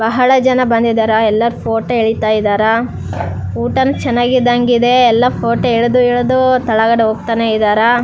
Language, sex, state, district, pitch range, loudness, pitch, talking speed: Kannada, female, Karnataka, Raichur, 220-245 Hz, -13 LUFS, 230 Hz, 135 wpm